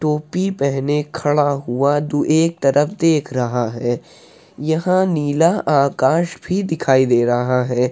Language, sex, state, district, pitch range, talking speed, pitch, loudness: Hindi, male, Uttar Pradesh, Hamirpur, 130-160 Hz, 135 wpm, 145 Hz, -18 LUFS